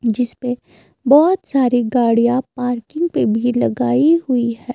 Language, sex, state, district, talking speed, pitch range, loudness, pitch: Hindi, male, Himachal Pradesh, Shimla, 125 wpm, 240-270 Hz, -16 LUFS, 245 Hz